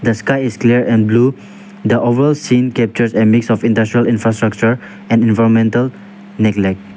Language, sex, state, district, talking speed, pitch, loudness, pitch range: English, male, Nagaland, Dimapur, 155 wpm, 115 Hz, -14 LUFS, 110-125 Hz